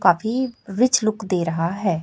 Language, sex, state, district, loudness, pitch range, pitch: Hindi, female, Chhattisgarh, Raipur, -21 LUFS, 175-225 Hz, 195 Hz